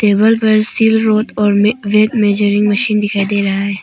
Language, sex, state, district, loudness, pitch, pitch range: Hindi, female, Arunachal Pradesh, Papum Pare, -13 LUFS, 210 Hz, 205-215 Hz